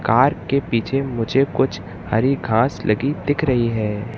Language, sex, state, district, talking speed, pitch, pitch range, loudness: Hindi, male, Madhya Pradesh, Katni, 160 wpm, 120 Hz, 110-135 Hz, -20 LUFS